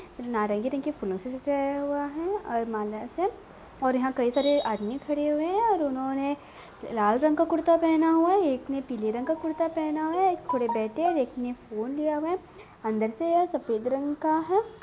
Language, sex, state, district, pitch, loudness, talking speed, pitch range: Hindi, female, Bihar, Gopalganj, 285 Hz, -27 LUFS, 200 wpm, 245-325 Hz